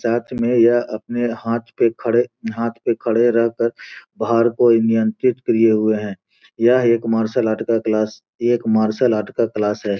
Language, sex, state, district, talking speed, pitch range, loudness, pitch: Hindi, male, Bihar, Gopalganj, 180 wpm, 110-120 Hz, -18 LUFS, 115 Hz